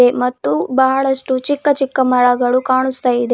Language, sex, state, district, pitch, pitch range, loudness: Kannada, female, Karnataka, Bidar, 255 Hz, 250-265 Hz, -15 LUFS